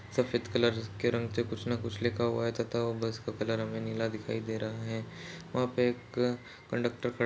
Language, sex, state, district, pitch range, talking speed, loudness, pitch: Hindi, male, Goa, North and South Goa, 110-120 Hz, 215 wpm, -33 LUFS, 115 Hz